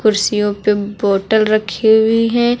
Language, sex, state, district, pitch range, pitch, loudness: Hindi, female, Uttar Pradesh, Lucknow, 205-220 Hz, 215 Hz, -14 LUFS